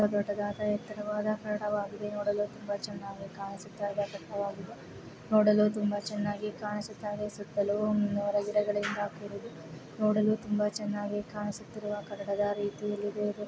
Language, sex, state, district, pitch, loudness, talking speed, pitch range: Kannada, female, Karnataka, Raichur, 205 Hz, -32 LUFS, 120 wpm, 205-210 Hz